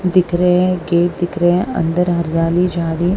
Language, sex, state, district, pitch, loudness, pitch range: Hindi, female, Punjab, Kapurthala, 175 Hz, -16 LUFS, 170-180 Hz